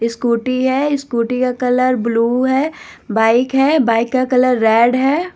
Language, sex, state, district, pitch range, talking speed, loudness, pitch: Hindi, female, Bihar, Katihar, 235-265 Hz, 170 wpm, -15 LUFS, 255 Hz